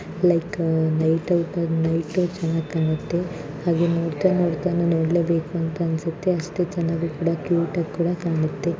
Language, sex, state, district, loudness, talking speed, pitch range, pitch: Kannada, female, Karnataka, Mysore, -23 LUFS, 110 wpm, 165-175 Hz, 170 Hz